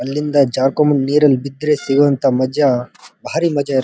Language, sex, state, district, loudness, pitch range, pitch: Kannada, male, Karnataka, Dharwad, -15 LUFS, 135-150 Hz, 140 Hz